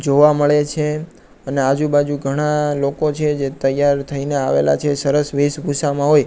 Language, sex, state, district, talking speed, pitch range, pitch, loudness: Gujarati, male, Gujarat, Gandhinagar, 155 wpm, 140-150 Hz, 145 Hz, -17 LUFS